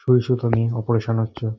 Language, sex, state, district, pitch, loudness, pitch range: Bengali, male, West Bengal, North 24 Parganas, 115 Hz, -21 LUFS, 115-125 Hz